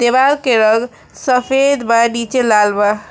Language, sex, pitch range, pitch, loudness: Bhojpuri, female, 220-260 Hz, 235 Hz, -13 LUFS